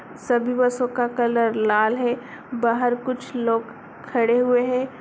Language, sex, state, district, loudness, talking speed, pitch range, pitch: Hindi, female, Bihar, Sitamarhi, -22 LUFS, 145 wpm, 235-250 Hz, 245 Hz